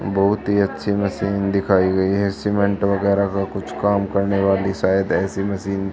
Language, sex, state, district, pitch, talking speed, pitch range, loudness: Hindi, female, Haryana, Charkhi Dadri, 100 Hz, 180 wpm, 95-100 Hz, -20 LUFS